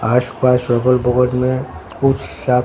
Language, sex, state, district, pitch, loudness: Hindi, male, Bihar, Katihar, 125 Hz, -16 LUFS